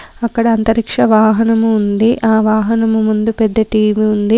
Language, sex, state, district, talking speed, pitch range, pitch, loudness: Telugu, female, Telangana, Komaram Bheem, 135 wpm, 215-225 Hz, 220 Hz, -13 LUFS